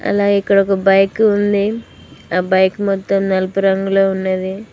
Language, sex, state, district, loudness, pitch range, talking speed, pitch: Telugu, female, Telangana, Mahabubabad, -15 LUFS, 190-200 Hz, 140 wpm, 195 Hz